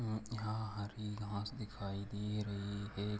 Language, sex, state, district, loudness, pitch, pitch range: Hindi, male, Jharkhand, Sahebganj, -42 LUFS, 105 Hz, 100-110 Hz